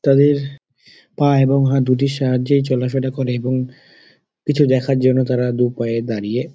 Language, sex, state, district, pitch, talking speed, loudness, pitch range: Bengali, male, West Bengal, Dakshin Dinajpur, 130 Hz, 145 wpm, -17 LUFS, 125-140 Hz